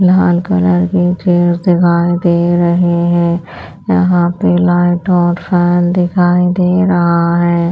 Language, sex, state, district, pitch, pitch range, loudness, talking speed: Hindi, female, Punjab, Pathankot, 175 Hz, 175-180 Hz, -12 LUFS, 130 wpm